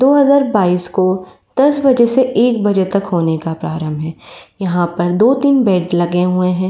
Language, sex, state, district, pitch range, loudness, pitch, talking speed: Hindi, female, Uttar Pradesh, Varanasi, 175-245 Hz, -14 LUFS, 185 Hz, 195 wpm